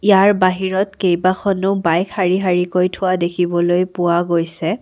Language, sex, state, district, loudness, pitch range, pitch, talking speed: Assamese, female, Assam, Kamrup Metropolitan, -17 LUFS, 175-190 Hz, 185 Hz, 135 wpm